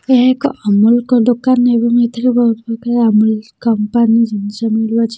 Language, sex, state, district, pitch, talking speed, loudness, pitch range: Odia, female, Odisha, Khordha, 235 Hz, 140 wpm, -13 LUFS, 225-245 Hz